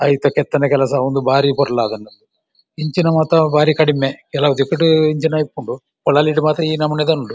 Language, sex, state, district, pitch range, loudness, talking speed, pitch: Tulu, male, Karnataka, Dakshina Kannada, 140-155 Hz, -16 LUFS, 165 wpm, 150 Hz